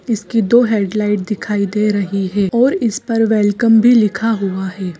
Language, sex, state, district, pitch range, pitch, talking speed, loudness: Hindi, female, Bihar, East Champaran, 200-225 Hz, 210 Hz, 180 wpm, -15 LUFS